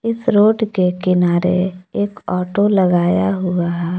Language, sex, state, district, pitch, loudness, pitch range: Hindi, female, Jharkhand, Palamu, 185 Hz, -16 LUFS, 180-205 Hz